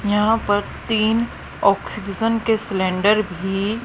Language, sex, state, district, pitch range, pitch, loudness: Hindi, female, Haryana, Rohtak, 200-225 Hz, 210 Hz, -20 LUFS